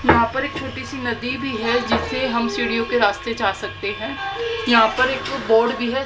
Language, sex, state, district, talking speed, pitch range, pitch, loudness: Hindi, female, Haryana, Jhajjar, 225 wpm, 225-265 Hz, 235 Hz, -20 LUFS